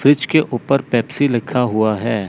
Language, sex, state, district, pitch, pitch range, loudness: Hindi, male, Chandigarh, Chandigarh, 125 Hz, 115-140 Hz, -17 LUFS